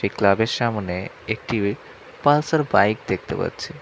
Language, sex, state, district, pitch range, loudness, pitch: Bengali, male, West Bengal, Cooch Behar, 100-120 Hz, -22 LUFS, 110 Hz